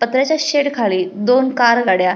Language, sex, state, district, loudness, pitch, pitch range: Marathi, female, Maharashtra, Pune, -15 LUFS, 245 Hz, 200-270 Hz